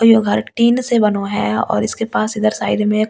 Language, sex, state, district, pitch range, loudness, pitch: Hindi, female, Delhi, New Delhi, 210-230 Hz, -16 LUFS, 215 Hz